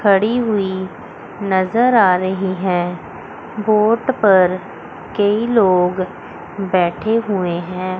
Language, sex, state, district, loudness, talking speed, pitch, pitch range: Hindi, female, Chandigarh, Chandigarh, -17 LUFS, 95 wpm, 190 Hz, 185-215 Hz